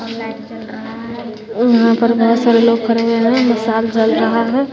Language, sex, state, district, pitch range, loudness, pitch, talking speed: Hindi, female, Bihar, West Champaran, 225-235 Hz, -14 LUFS, 230 Hz, 150 wpm